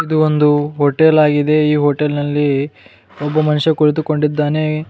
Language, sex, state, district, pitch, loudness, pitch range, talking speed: Kannada, male, Karnataka, Bidar, 150 Hz, -14 LUFS, 145-155 Hz, 120 wpm